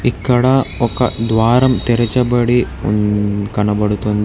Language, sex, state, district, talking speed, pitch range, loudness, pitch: Telugu, male, Telangana, Hyderabad, 100 wpm, 105-125 Hz, -15 LUFS, 115 Hz